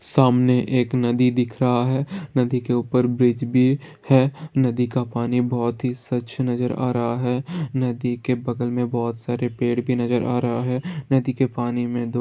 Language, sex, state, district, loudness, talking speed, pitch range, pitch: Hindi, male, Bihar, Saran, -22 LUFS, 195 wpm, 120-130 Hz, 125 Hz